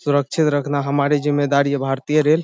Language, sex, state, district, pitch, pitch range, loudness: Hindi, male, Bihar, Saharsa, 145 Hz, 140-150 Hz, -19 LUFS